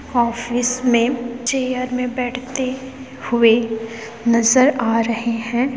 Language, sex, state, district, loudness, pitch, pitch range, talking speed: Hindi, female, Chhattisgarh, Kabirdham, -18 LUFS, 245 Hz, 235-255 Hz, 105 wpm